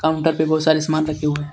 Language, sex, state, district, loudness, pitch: Hindi, male, Jharkhand, Deoghar, -19 LUFS, 155 Hz